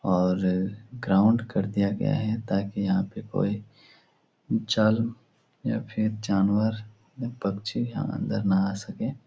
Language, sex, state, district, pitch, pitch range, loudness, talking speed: Hindi, male, Bihar, Supaul, 105 Hz, 95-110 Hz, -27 LUFS, 130 wpm